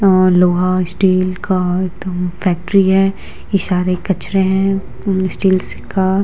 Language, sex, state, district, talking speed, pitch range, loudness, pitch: Hindi, female, Bihar, Vaishali, 135 wpm, 180-195 Hz, -15 LUFS, 185 Hz